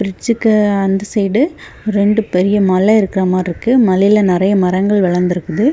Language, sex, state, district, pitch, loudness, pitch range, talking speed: Tamil, female, Tamil Nadu, Kanyakumari, 200 Hz, -13 LUFS, 185-215 Hz, 135 wpm